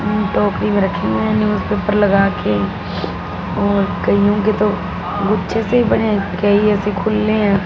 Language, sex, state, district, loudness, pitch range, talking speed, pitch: Hindi, female, Punjab, Fazilka, -16 LUFS, 195-210 Hz, 135 wpm, 205 Hz